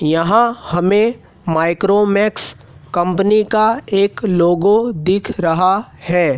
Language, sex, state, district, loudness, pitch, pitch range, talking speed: Hindi, male, Madhya Pradesh, Dhar, -15 LUFS, 195 Hz, 175-215 Hz, 95 wpm